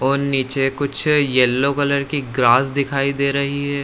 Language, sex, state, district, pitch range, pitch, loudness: Hindi, male, Bihar, Lakhisarai, 135-140 Hz, 140 Hz, -17 LUFS